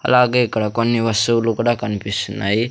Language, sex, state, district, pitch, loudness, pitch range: Telugu, male, Andhra Pradesh, Sri Satya Sai, 115 Hz, -18 LUFS, 105-120 Hz